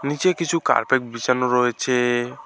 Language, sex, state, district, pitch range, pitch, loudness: Bengali, male, West Bengal, Alipurduar, 125-145 Hz, 125 Hz, -20 LUFS